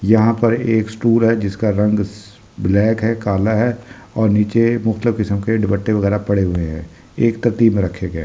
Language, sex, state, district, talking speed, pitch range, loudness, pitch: Hindi, male, Delhi, New Delhi, 205 wpm, 100-115 Hz, -17 LUFS, 110 Hz